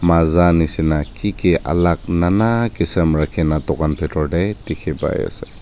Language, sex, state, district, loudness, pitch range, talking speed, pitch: Nagamese, male, Nagaland, Dimapur, -17 LUFS, 80-90 Hz, 160 wpm, 85 Hz